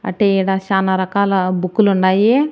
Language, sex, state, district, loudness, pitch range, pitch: Telugu, female, Andhra Pradesh, Annamaya, -15 LUFS, 185-200 Hz, 195 Hz